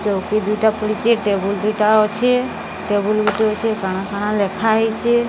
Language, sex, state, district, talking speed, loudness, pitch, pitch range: Odia, female, Odisha, Sambalpur, 145 wpm, -18 LUFS, 215 Hz, 205-220 Hz